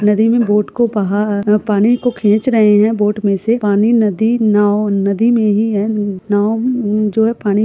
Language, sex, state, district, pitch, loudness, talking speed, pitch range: Hindi, female, Uttar Pradesh, Budaun, 210 Hz, -14 LUFS, 195 wpm, 205-225 Hz